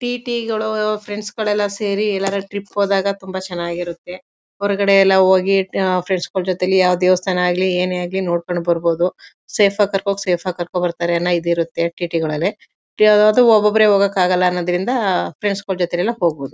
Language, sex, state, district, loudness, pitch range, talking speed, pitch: Kannada, female, Karnataka, Mysore, -17 LUFS, 175-205 Hz, 175 wpm, 190 Hz